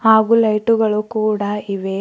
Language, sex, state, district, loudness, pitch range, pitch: Kannada, female, Karnataka, Bidar, -17 LUFS, 205-220 Hz, 215 Hz